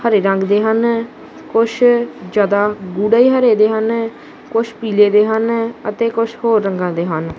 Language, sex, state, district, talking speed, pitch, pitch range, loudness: Punjabi, male, Punjab, Kapurthala, 160 wpm, 225 Hz, 205-230 Hz, -15 LUFS